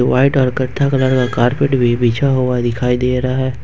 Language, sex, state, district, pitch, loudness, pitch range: Hindi, male, Jharkhand, Ranchi, 125 Hz, -15 LUFS, 125-130 Hz